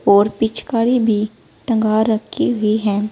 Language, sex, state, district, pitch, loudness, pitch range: Hindi, female, Uttar Pradesh, Saharanpur, 220 Hz, -17 LUFS, 210-225 Hz